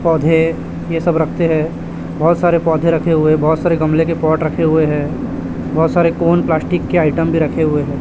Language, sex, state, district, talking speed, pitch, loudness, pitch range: Hindi, male, Chhattisgarh, Raipur, 215 wpm, 160 Hz, -15 LUFS, 155-165 Hz